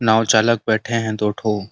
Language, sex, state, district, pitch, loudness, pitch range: Hindi, male, Uttar Pradesh, Gorakhpur, 110 Hz, -18 LUFS, 105-115 Hz